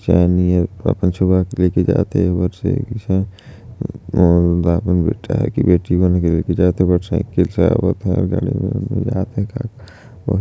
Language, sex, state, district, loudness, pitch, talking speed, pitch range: Chhattisgarhi, male, Chhattisgarh, Jashpur, -17 LUFS, 90 Hz, 140 wpm, 90-105 Hz